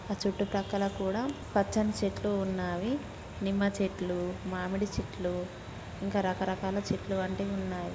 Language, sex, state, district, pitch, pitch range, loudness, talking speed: Telugu, female, Telangana, Nalgonda, 195 Hz, 185-200 Hz, -33 LUFS, 120 wpm